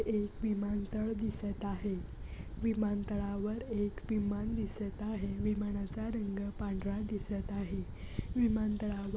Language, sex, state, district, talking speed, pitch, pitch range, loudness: Marathi, female, Maharashtra, Pune, 120 wpm, 205 Hz, 200-215 Hz, -37 LUFS